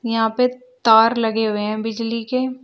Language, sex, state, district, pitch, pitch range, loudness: Hindi, female, Uttar Pradesh, Shamli, 230 Hz, 225-250 Hz, -19 LUFS